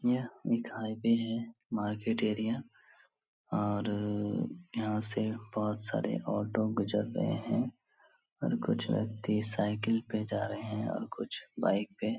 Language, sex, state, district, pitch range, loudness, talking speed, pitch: Hindi, male, Bihar, Supaul, 105-115 Hz, -34 LUFS, 140 wpm, 110 Hz